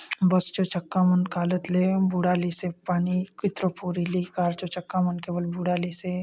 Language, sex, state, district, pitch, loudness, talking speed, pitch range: Halbi, male, Chhattisgarh, Bastar, 180 Hz, -25 LUFS, 175 wpm, 175-185 Hz